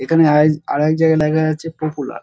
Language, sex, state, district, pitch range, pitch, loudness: Bengali, male, West Bengal, Dakshin Dinajpur, 150-160 Hz, 155 Hz, -16 LUFS